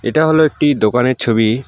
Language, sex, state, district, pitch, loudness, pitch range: Bengali, male, West Bengal, Alipurduar, 130 Hz, -14 LUFS, 115-150 Hz